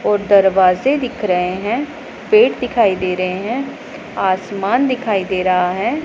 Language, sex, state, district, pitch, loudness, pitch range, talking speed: Hindi, female, Punjab, Pathankot, 200 Hz, -16 LUFS, 185-275 Hz, 150 wpm